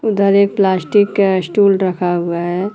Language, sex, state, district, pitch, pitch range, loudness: Hindi, female, Uttar Pradesh, Lucknow, 195 Hz, 180-200 Hz, -14 LUFS